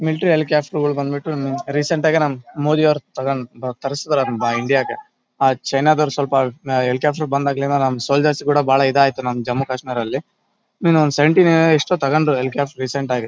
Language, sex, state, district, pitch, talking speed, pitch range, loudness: Kannada, male, Karnataka, Bellary, 140 Hz, 150 wpm, 130-150 Hz, -18 LUFS